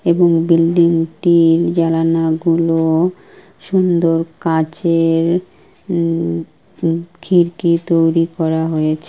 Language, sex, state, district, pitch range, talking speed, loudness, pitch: Bengali, female, West Bengal, Kolkata, 165-170 Hz, 80 wpm, -15 LUFS, 165 Hz